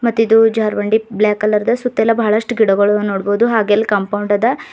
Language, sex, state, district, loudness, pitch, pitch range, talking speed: Kannada, female, Karnataka, Bidar, -15 LUFS, 215 Hz, 205-225 Hz, 180 wpm